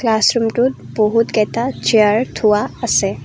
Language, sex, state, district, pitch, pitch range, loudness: Assamese, female, Assam, Kamrup Metropolitan, 225 Hz, 215-235 Hz, -16 LUFS